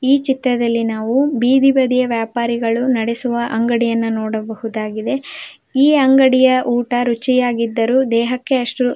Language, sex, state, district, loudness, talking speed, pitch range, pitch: Kannada, female, Karnataka, Belgaum, -16 LUFS, 105 wpm, 230-260 Hz, 245 Hz